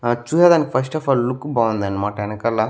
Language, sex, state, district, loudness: Telugu, male, Andhra Pradesh, Annamaya, -19 LUFS